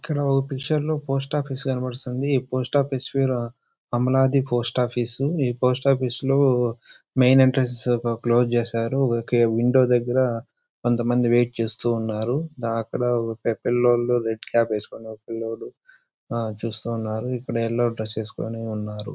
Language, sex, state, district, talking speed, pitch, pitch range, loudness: Telugu, male, Andhra Pradesh, Chittoor, 130 wpm, 120 Hz, 115-130 Hz, -23 LUFS